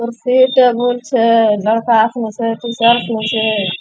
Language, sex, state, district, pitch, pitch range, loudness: Angika, female, Bihar, Bhagalpur, 230 Hz, 220-240 Hz, -14 LUFS